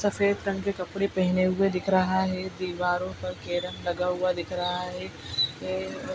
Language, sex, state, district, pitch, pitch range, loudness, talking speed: Hindi, female, Bihar, Araria, 180 Hz, 175-190 Hz, -28 LUFS, 195 wpm